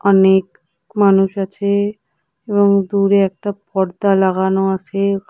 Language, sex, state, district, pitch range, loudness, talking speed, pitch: Bengali, female, West Bengal, Cooch Behar, 190-200 Hz, -16 LUFS, 115 wpm, 195 Hz